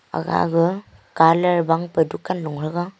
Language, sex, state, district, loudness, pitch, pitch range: Wancho, female, Arunachal Pradesh, Longding, -20 LUFS, 170 Hz, 165-175 Hz